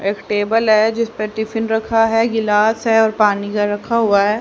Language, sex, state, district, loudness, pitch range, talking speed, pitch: Hindi, female, Haryana, Charkhi Dadri, -16 LUFS, 210-225 Hz, 215 wpm, 220 Hz